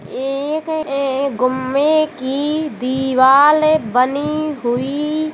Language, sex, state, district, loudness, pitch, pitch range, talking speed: Hindi, female, Uttar Pradesh, Hamirpur, -16 LUFS, 280 Hz, 260-305 Hz, 90 wpm